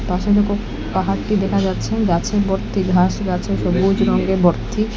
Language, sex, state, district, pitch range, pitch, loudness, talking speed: Bengali, female, Assam, Hailakandi, 180-205 Hz, 195 Hz, -18 LUFS, 145 wpm